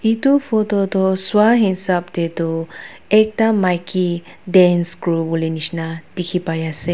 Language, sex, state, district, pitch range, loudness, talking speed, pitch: Nagamese, female, Nagaland, Dimapur, 165-205 Hz, -17 LUFS, 140 wpm, 180 Hz